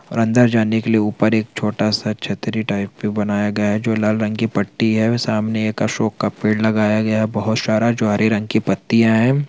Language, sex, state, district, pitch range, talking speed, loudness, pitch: Hindi, male, Chhattisgarh, Rajnandgaon, 105-110 Hz, 230 wpm, -18 LUFS, 110 Hz